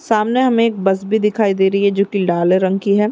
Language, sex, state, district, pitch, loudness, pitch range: Hindi, female, Chhattisgarh, Raigarh, 200 Hz, -16 LUFS, 195-220 Hz